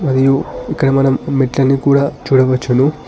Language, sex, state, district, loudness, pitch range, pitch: Telugu, male, Telangana, Hyderabad, -14 LUFS, 130-140 Hz, 135 Hz